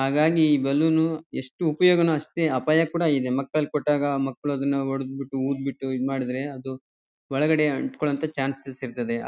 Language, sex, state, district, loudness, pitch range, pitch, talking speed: Kannada, male, Karnataka, Chamarajanagar, -24 LUFS, 135-155 Hz, 140 Hz, 150 wpm